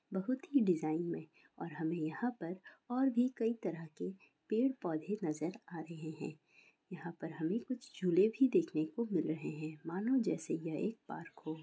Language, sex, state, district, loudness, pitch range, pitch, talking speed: Hindi, female, Bihar, Sitamarhi, -37 LUFS, 160-245 Hz, 185 Hz, 185 wpm